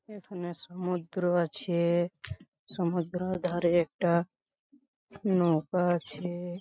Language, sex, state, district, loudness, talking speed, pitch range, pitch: Bengali, male, West Bengal, Paschim Medinipur, -30 LUFS, 80 wpm, 170-185 Hz, 175 Hz